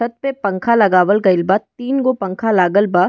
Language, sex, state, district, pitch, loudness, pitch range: Bhojpuri, female, Uttar Pradesh, Ghazipur, 205 Hz, -15 LUFS, 190-235 Hz